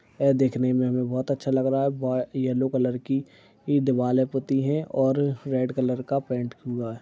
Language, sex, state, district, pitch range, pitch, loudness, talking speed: Hindi, male, Uttar Pradesh, Gorakhpur, 125-135 Hz, 130 Hz, -25 LUFS, 205 wpm